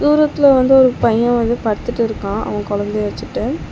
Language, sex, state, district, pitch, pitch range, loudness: Tamil, female, Tamil Nadu, Chennai, 235 Hz, 210-265 Hz, -16 LUFS